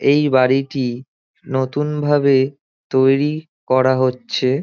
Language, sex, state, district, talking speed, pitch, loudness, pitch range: Bengali, male, West Bengal, Dakshin Dinajpur, 80 wpm, 135 Hz, -17 LUFS, 130-145 Hz